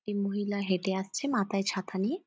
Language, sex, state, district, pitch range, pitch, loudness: Bengali, female, West Bengal, Jhargram, 190-205 Hz, 200 Hz, -31 LUFS